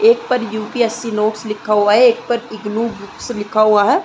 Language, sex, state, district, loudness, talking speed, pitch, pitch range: Hindi, female, Uttar Pradesh, Muzaffarnagar, -16 LUFS, 210 wpm, 220 Hz, 210-235 Hz